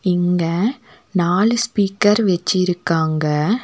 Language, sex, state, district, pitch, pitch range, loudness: Tamil, female, Tamil Nadu, Nilgiris, 185 Hz, 175-210 Hz, -18 LUFS